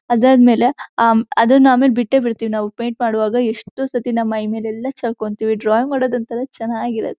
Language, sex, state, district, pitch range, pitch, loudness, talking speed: Kannada, female, Karnataka, Shimoga, 220-250 Hz, 235 Hz, -16 LUFS, 140 wpm